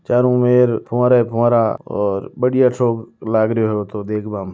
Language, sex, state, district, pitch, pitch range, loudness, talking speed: Marwari, male, Rajasthan, Nagaur, 115 Hz, 105-125 Hz, -17 LUFS, 200 wpm